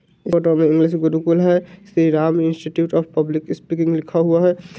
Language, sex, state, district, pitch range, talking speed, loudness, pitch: Hindi, male, Bihar, Vaishali, 160-175 Hz, 175 wpm, -18 LUFS, 165 Hz